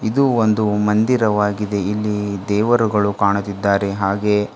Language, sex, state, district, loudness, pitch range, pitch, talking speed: Kannada, female, Karnataka, Bidar, -18 LUFS, 100-105 Hz, 105 Hz, 90 wpm